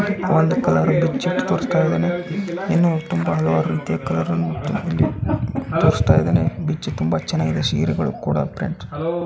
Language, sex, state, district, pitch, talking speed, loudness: Kannada, male, Karnataka, Bijapur, 125 Hz, 125 wpm, -20 LUFS